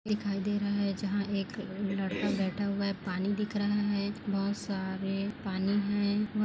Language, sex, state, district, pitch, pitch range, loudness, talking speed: Hindi, female, Chhattisgarh, Kabirdham, 200 Hz, 195-205 Hz, -32 LUFS, 165 wpm